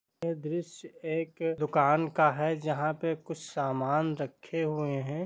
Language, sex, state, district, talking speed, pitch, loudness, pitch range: Hindi, male, Jharkhand, Sahebganj, 150 wpm, 155 Hz, -30 LUFS, 150-165 Hz